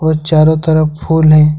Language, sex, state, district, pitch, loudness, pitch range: Hindi, male, Jharkhand, Ranchi, 155 Hz, -11 LUFS, 155-160 Hz